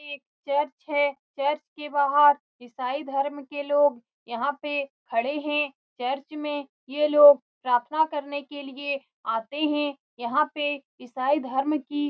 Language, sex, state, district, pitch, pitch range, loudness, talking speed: Hindi, female, Bihar, Saran, 285 Hz, 275-295 Hz, -25 LUFS, 155 wpm